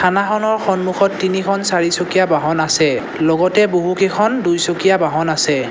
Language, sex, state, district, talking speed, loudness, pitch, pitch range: Assamese, male, Assam, Kamrup Metropolitan, 115 wpm, -15 LUFS, 180 Hz, 160-195 Hz